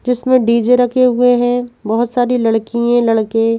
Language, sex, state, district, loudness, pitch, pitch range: Hindi, female, Madhya Pradesh, Bhopal, -14 LUFS, 240 Hz, 230-245 Hz